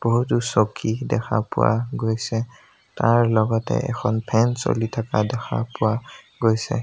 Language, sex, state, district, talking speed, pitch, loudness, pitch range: Assamese, male, Assam, Sonitpur, 125 wpm, 115 Hz, -22 LUFS, 110-120 Hz